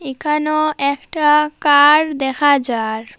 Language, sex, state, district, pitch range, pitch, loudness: Bengali, female, Assam, Hailakandi, 270-300 Hz, 290 Hz, -15 LUFS